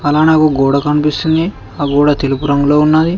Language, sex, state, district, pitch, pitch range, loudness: Telugu, male, Telangana, Mahabubabad, 150 Hz, 140-155 Hz, -12 LUFS